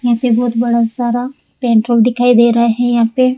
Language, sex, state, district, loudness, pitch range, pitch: Hindi, female, Rajasthan, Jaipur, -13 LUFS, 235-245 Hz, 240 Hz